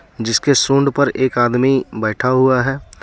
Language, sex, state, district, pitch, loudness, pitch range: Hindi, male, Jharkhand, Deoghar, 130 Hz, -15 LUFS, 120-140 Hz